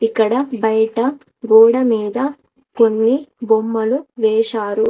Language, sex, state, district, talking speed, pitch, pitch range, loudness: Telugu, female, Telangana, Mahabubabad, 85 wpm, 225 Hz, 220-255 Hz, -16 LUFS